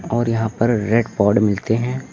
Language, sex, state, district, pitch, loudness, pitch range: Hindi, male, Uttar Pradesh, Lucknow, 115 Hz, -18 LUFS, 105-120 Hz